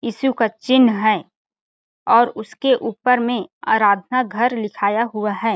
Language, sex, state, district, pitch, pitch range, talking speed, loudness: Hindi, female, Chhattisgarh, Balrampur, 230 Hz, 215-250 Hz, 150 wpm, -18 LUFS